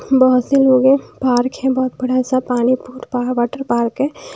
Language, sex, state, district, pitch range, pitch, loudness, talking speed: Hindi, female, Punjab, Pathankot, 245-265 Hz, 255 Hz, -16 LUFS, 180 wpm